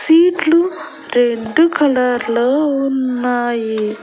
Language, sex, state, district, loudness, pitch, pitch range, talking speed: Telugu, female, Andhra Pradesh, Annamaya, -15 LUFS, 255 Hz, 240-310 Hz, 75 wpm